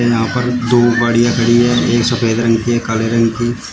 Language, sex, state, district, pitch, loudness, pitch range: Hindi, male, Uttar Pradesh, Shamli, 120 Hz, -14 LUFS, 115-120 Hz